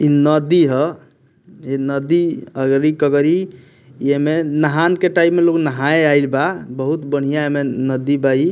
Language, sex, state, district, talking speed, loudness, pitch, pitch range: Bhojpuri, male, Bihar, Muzaffarpur, 155 wpm, -16 LUFS, 145 Hz, 135-160 Hz